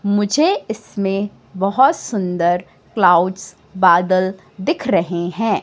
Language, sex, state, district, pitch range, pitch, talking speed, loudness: Hindi, female, Madhya Pradesh, Katni, 185-215 Hz, 195 Hz, 95 wpm, -17 LUFS